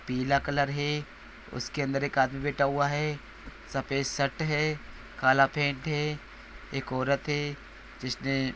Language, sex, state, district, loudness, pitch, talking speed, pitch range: Hindi, male, Maharashtra, Solapur, -29 LUFS, 140 Hz, 140 wpm, 135-145 Hz